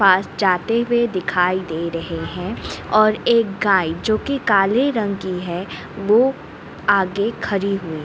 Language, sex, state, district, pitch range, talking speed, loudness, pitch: Hindi, female, Bihar, Katihar, 180-220 Hz, 150 wpm, -19 LUFS, 195 Hz